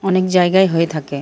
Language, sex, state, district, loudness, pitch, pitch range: Bengali, male, Jharkhand, Jamtara, -15 LUFS, 180 Hz, 160-185 Hz